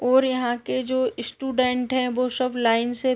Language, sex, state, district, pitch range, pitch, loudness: Hindi, female, Uttar Pradesh, Deoria, 245-255 Hz, 255 Hz, -23 LUFS